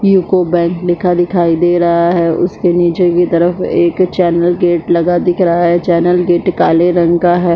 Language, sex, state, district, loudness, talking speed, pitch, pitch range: Hindi, female, Chhattisgarh, Bilaspur, -12 LUFS, 190 wpm, 175 Hz, 170-180 Hz